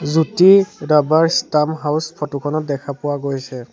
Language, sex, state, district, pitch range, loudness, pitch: Assamese, male, Assam, Sonitpur, 140-160 Hz, -17 LUFS, 150 Hz